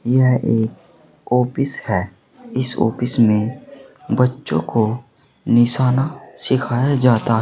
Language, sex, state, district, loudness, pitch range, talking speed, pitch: Hindi, male, Uttar Pradesh, Saharanpur, -18 LUFS, 115-130 Hz, 95 wpm, 125 Hz